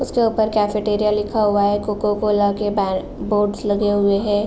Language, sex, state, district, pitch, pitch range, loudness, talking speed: Hindi, female, Uttar Pradesh, Gorakhpur, 210 Hz, 205-210 Hz, -19 LUFS, 175 wpm